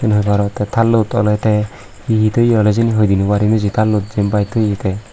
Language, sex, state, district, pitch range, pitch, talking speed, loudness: Chakma, female, Tripura, Unakoti, 105-110 Hz, 105 Hz, 235 wpm, -15 LUFS